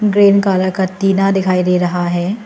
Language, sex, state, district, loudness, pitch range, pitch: Hindi, female, Arunachal Pradesh, Lower Dibang Valley, -14 LUFS, 180-195 Hz, 190 Hz